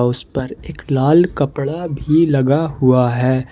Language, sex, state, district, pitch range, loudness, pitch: Hindi, male, Jharkhand, Ranchi, 130-155 Hz, -16 LUFS, 140 Hz